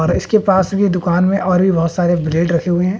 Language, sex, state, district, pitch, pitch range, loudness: Hindi, male, Bihar, West Champaran, 180 Hz, 170-190 Hz, -15 LUFS